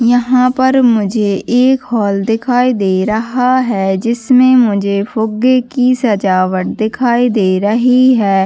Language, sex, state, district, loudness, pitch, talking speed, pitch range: Hindi, female, Chhattisgarh, Bastar, -12 LUFS, 235 Hz, 140 wpm, 200-250 Hz